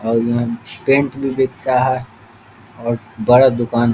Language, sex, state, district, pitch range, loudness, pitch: Hindi, male, Bihar, East Champaran, 115-130 Hz, -17 LUFS, 120 Hz